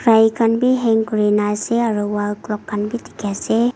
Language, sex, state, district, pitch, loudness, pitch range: Nagamese, female, Nagaland, Dimapur, 220 Hz, -18 LUFS, 210-230 Hz